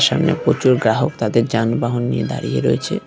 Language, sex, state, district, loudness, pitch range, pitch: Bengali, male, West Bengal, Cooch Behar, -18 LUFS, 90-120 Hz, 115 Hz